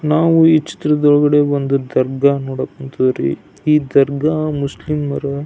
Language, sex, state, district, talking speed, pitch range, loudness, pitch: Kannada, male, Karnataka, Belgaum, 120 wpm, 140-150 Hz, -16 LUFS, 145 Hz